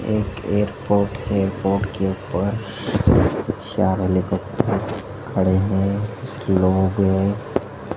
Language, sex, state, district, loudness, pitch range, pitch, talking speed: Hindi, male, Madhya Pradesh, Dhar, -21 LUFS, 95-105 Hz, 100 Hz, 85 wpm